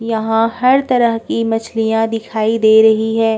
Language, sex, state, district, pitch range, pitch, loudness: Hindi, female, Chhattisgarh, Korba, 220-230 Hz, 225 Hz, -14 LUFS